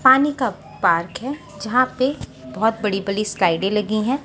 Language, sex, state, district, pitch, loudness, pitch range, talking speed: Hindi, female, Maharashtra, Washim, 215 Hz, -20 LUFS, 195-255 Hz, 170 wpm